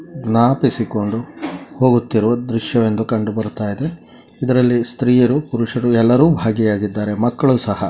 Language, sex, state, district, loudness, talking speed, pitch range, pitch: Kannada, male, Karnataka, Gulbarga, -17 LUFS, 100 wpm, 110-125 Hz, 120 Hz